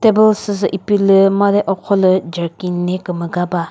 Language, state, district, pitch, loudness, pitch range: Chakhesang, Nagaland, Dimapur, 195 Hz, -15 LUFS, 180-200 Hz